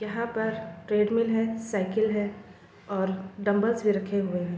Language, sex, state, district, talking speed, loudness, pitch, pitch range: Hindi, female, Bihar, East Champaran, 155 wpm, -28 LUFS, 210 Hz, 195-220 Hz